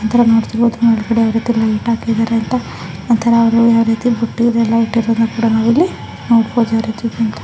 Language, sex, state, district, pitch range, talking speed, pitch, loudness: Kannada, female, Karnataka, Raichur, 225-235 Hz, 130 wpm, 230 Hz, -14 LUFS